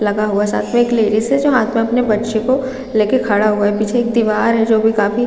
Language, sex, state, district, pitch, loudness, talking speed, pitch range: Hindi, female, Chhattisgarh, Raigarh, 225 Hz, -15 LUFS, 285 wpm, 215-240 Hz